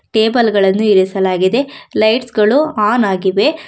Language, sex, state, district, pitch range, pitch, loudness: Kannada, female, Karnataka, Bangalore, 195-245 Hz, 215 Hz, -13 LUFS